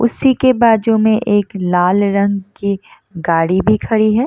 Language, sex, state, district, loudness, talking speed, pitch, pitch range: Hindi, female, Bihar, Samastipur, -14 LUFS, 170 wpm, 205 Hz, 190-225 Hz